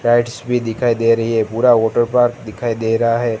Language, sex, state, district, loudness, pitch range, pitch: Hindi, male, Gujarat, Gandhinagar, -16 LUFS, 115-120 Hz, 115 Hz